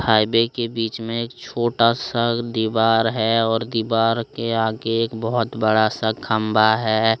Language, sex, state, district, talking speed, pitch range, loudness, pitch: Hindi, male, Jharkhand, Deoghar, 160 wpm, 110-115 Hz, -20 LUFS, 115 Hz